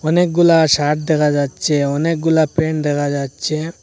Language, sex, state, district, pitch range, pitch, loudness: Bengali, male, Assam, Hailakandi, 145-160 Hz, 155 Hz, -16 LUFS